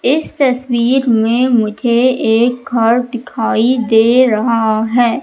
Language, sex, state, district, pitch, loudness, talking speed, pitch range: Hindi, female, Madhya Pradesh, Katni, 240 Hz, -13 LUFS, 115 wpm, 230-250 Hz